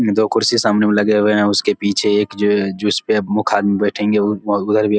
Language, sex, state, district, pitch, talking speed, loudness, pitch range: Hindi, male, Bihar, Supaul, 105 Hz, 250 wpm, -16 LUFS, 100-105 Hz